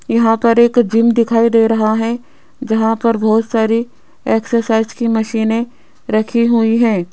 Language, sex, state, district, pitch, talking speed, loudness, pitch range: Hindi, female, Rajasthan, Jaipur, 230 Hz, 160 wpm, -14 LUFS, 225-235 Hz